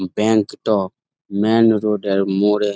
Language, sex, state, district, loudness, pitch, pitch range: Bengali, male, West Bengal, Jalpaiguri, -18 LUFS, 105 Hz, 100-110 Hz